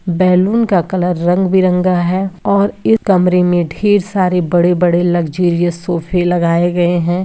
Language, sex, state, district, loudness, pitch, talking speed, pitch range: Hindi, female, Uttar Pradesh, Etah, -13 LUFS, 180 Hz, 140 wpm, 175-185 Hz